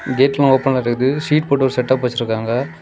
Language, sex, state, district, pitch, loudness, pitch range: Tamil, male, Tamil Nadu, Kanyakumari, 130 Hz, -17 LUFS, 125-140 Hz